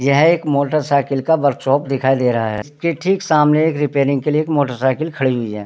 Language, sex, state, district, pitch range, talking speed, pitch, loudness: Hindi, male, Uttarakhand, Tehri Garhwal, 135-155 Hz, 245 wpm, 140 Hz, -17 LUFS